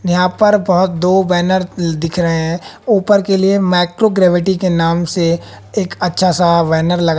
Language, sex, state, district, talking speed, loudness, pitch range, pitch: Hindi, female, Haryana, Jhajjar, 165 wpm, -14 LUFS, 170-190 Hz, 180 Hz